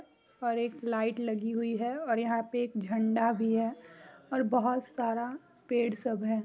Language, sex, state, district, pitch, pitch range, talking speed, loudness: Hindi, female, Bihar, Muzaffarpur, 230 Hz, 225-245 Hz, 175 wpm, -31 LUFS